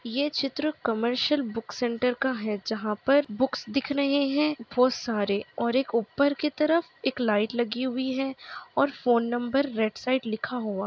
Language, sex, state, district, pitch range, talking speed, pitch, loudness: Hindi, female, Bihar, Kishanganj, 225-280 Hz, 180 wpm, 250 Hz, -27 LUFS